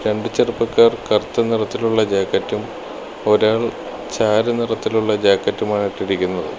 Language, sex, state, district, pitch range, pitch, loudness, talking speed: Malayalam, male, Kerala, Kollam, 105-115 Hz, 110 Hz, -18 LUFS, 80 wpm